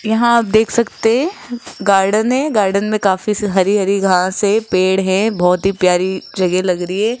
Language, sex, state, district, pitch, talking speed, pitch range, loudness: Hindi, female, Rajasthan, Jaipur, 200 Hz, 185 wpm, 190-220 Hz, -15 LUFS